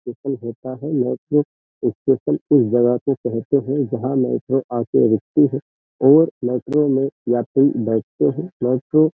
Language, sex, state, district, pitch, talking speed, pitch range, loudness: Hindi, male, Uttar Pradesh, Jyotiba Phule Nagar, 135 Hz, 135 wpm, 120-145 Hz, -19 LUFS